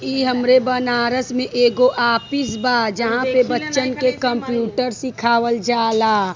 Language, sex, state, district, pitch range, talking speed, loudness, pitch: Bhojpuri, female, Uttar Pradesh, Varanasi, 235-255 Hz, 130 wpm, -18 LUFS, 245 Hz